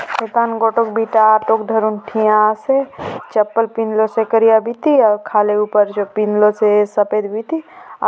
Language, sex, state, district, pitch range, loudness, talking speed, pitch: Halbi, female, Chhattisgarh, Bastar, 210-225 Hz, -15 LUFS, 155 wpm, 220 Hz